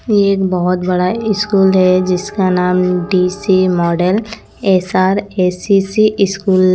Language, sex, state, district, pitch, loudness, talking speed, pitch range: Hindi, female, Chandigarh, Chandigarh, 185 Hz, -14 LUFS, 160 wpm, 180-200 Hz